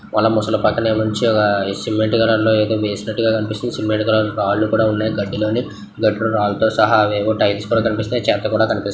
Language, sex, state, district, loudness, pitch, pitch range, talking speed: Telugu, male, Andhra Pradesh, Visakhapatnam, -17 LUFS, 110 Hz, 105-110 Hz, 240 wpm